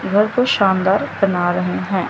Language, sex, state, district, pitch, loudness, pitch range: Hindi, female, Chandigarh, Chandigarh, 195 Hz, -17 LUFS, 185-205 Hz